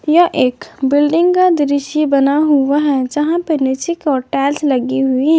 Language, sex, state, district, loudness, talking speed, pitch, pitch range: Hindi, female, Jharkhand, Garhwa, -14 LUFS, 180 wpm, 290 Hz, 270-315 Hz